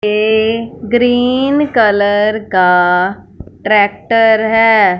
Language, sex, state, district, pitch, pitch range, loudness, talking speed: Hindi, female, Punjab, Fazilka, 220 Hz, 205-230 Hz, -12 LUFS, 70 wpm